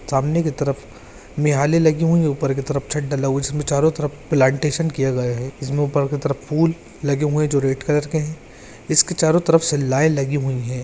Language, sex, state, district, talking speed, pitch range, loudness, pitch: Hindi, male, Andhra Pradesh, Chittoor, 220 wpm, 135-155 Hz, -19 LUFS, 145 Hz